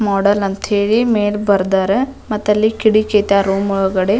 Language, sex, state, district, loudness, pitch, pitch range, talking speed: Kannada, female, Karnataka, Dharwad, -15 LUFS, 205 Hz, 195-215 Hz, 170 wpm